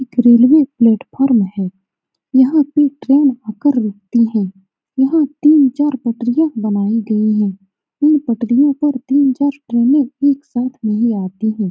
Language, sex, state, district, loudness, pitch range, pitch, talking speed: Hindi, female, Bihar, Saran, -15 LUFS, 215-280 Hz, 245 Hz, 135 wpm